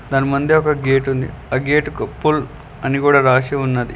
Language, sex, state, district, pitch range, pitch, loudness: Telugu, male, Telangana, Mahabubabad, 135-145 Hz, 140 Hz, -17 LUFS